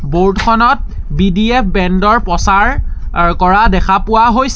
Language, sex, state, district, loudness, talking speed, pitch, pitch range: Assamese, male, Assam, Sonitpur, -11 LUFS, 120 wpm, 195 Hz, 185-225 Hz